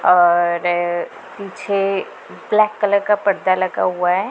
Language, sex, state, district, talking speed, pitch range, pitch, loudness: Hindi, female, Punjab, Pathankot, 125 wpm, 175-200 Hz, 190 Hz, -17 LUFS